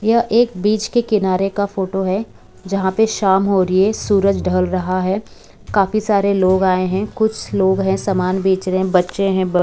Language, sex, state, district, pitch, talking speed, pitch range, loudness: Hindi, female, Bihar, West Champaran, 195 Hz, 210 wpm, 185-205 Hz, -17 LUFS